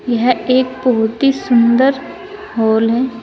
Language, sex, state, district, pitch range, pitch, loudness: Hindi, female, Uttar Pradesh, Saharanpur, 235-270 Hz, 250 Hz, -14 LUFS